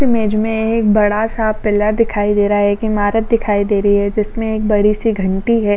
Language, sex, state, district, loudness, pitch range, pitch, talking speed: Hindi, female, Maharashtra, Chandrapur, -15 LUFS, 205-225 Hz, 215 Hz, 240 wpm